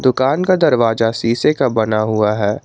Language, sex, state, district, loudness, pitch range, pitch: Hindi, male, Jharkhand, Garhwa, -15 LUFS, 110-130 Hz, 115 Hz